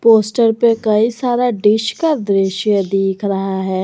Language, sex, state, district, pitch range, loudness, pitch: Hindi, female, Jharkhand, Garhwa, 195-230 Hz, -15 LUFS, 210 Hz